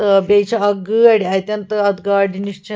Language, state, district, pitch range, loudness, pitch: Kashmiri, Punjab, Kapurthala, 195-210 Hz, -15 LUFS, 205 Hz